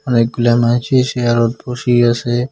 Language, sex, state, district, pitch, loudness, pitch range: Bengali, male, West Bengal, Cooch Behar, 120 Hz, -15 LUFS, 120-125 Hz